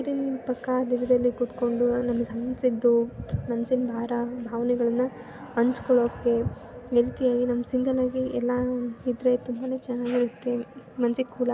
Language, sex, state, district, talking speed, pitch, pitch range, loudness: Kannada, female, Karnataka, Chamarajanagar, 120 wpm, 245 Hz, 240-255 Hz, -26 LUFS